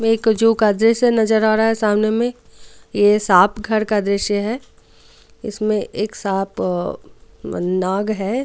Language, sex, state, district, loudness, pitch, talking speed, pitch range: Hindi, female, Goa, North and South Goa, -18 LUFS, 215 Hz, 150 wpm, 205-225 Hz